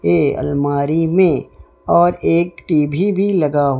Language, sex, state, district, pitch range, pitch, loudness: Hindi, male, Odisha, Sambalpur, 145-175 Hz, 160 Hz, -16 LUFS